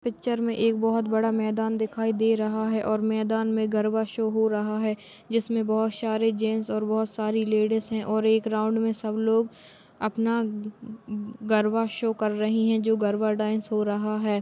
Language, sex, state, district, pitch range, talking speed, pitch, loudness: Hindi, female, Bihar, Lakhisarai, 215-225 Hz, 190 wpm, 220 Hz, -26 LUFS